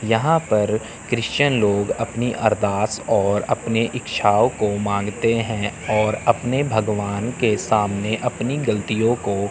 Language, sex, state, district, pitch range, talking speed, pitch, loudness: Hindi, male, Chandigarh, Chandigarh, 105-120 Hz, 125 wpm, 110 Hz, -20 LUFS